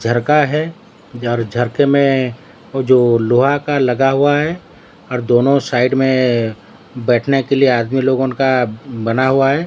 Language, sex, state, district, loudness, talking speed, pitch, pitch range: Hindi, male, Odisha, Sambalpur, -15 LUFS, 155 wpm, 130 Hz, 120-140 Hz